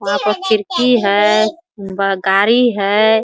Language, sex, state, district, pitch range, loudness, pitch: Hindi, female, Bihar, Muzaffarpur, 200-225 Hz, -14 LUFS, 210 Hz